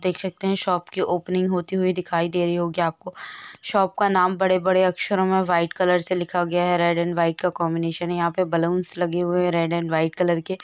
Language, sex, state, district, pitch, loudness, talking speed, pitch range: Hindi, female, Bihar, Gopalganj, 180 Hz, -22 LUFS, 235 wpm, 170-185 Hz